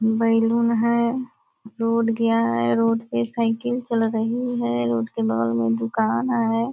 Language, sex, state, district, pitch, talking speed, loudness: Hindi, female, Bihar, Purnia, 225 Hz, 150 wpm, -22 LUFS